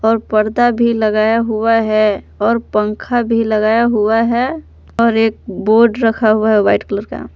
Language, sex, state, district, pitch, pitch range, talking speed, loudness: Hindi, female, Jharkhand, Palamu, 220 Hz, 215-230 Hz, 170 wpm, -14 LUFS